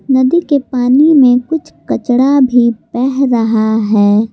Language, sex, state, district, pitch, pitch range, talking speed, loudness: Hindi, female, Jharkhand, Palamu, 250 Hz, 230-275 Hz, 140 wpm, -11 LUFS